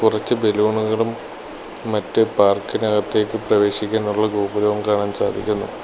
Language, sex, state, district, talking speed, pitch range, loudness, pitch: Malayalam, male, Kerala, Kollam, 80 wpm, 105-110 Hz, -19 LUFS, 105 Hz